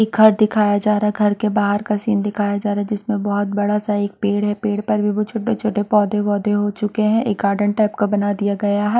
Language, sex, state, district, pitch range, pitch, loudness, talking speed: Hindi, female, Punjab, Pathankot, 205-210 Hz, 210 Hz, -18 LUFS, 275 wpm